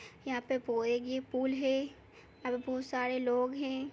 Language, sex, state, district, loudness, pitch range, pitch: Kumaoni, female, Uttarakhand, Uttarkashi, -34 LUFS, 250-265 Hz, 255 Hz